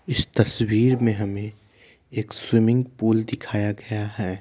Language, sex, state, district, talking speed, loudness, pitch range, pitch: Maithili, male, Bihar, Begusarai, 135 wpm, -23 LUFS, 105-120 Hz, 110 Hz